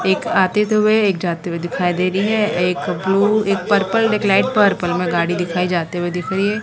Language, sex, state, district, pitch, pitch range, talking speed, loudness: Hindi, female, Maharashtra, Mumbai Suburban, 190 Hz, 175-205 Hz, 225 wpm, -17 LUFS